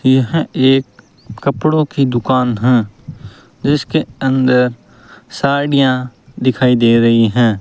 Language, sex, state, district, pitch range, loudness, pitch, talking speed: Hindi, male, Rajasthan, Bikaner, 120-140 Hz, -14 LUFS, 130 Hz, 100 wpm